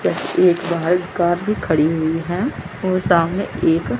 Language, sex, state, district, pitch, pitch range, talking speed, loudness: Hindi, female, Chandigarh, Chandigarh, 175 Hz, 165-185 Hz, 165 wpm, -19 LUFS